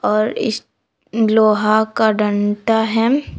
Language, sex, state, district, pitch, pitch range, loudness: Hindi, female, Jharkhand, Palamu, 220 Hz, 215-225 Hz, -16 LUFS